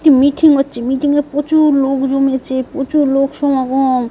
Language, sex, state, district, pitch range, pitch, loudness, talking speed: Bengali, female, West Bengal, Dakshin Dinajpur, 265-290 Hz, 275 Hz, -14 LUFS, 160 wpm